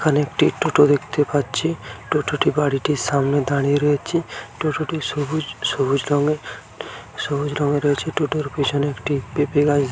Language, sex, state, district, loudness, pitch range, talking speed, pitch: Bengali, male, West Bengal, Dakshin Dinajpur, -21 LUFS, 140-150 Hz, 150 wpm, 145 Hz